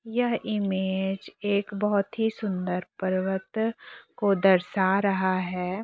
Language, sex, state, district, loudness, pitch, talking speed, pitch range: Hindi, female, Chhattisgarh, Korba, -26 LUFS, 195 Hz, 115 wpm, 190-210 Hz